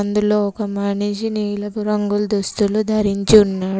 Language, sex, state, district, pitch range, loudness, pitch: Telugu, female, Telangana, Komaram Bheem, 200-210 Hz, -18 LUFS, 205 Hz